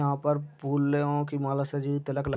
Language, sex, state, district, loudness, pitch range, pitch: Hindi, male, Bihar, Sitamarhi, -29 LUFS, 140-145 Hz, 145 Hz